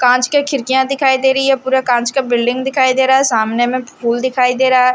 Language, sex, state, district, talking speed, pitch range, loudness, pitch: Hindi, female, Haryana, Charkhi Dadri, 265 wpm, 245-265 Hz, -14 LUFS, 260 Hz